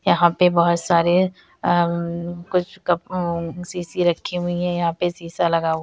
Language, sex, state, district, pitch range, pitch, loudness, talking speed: Hindi, female, Bihar, Madhepura, 170-180 Hz, 175 Hz, -21 LUFS, 195 wpm